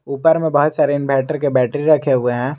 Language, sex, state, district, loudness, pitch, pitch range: Hindi, male, Jharkhand, Garhwa, -16 LUFS, 145 Hz, 130-150 Hz